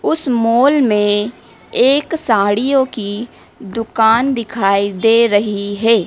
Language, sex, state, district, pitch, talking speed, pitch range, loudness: Hindi, female, Madhya Pradesh, Dhar, 230 Hz, 110 wpm, 205-250 Hz, -14 LUFS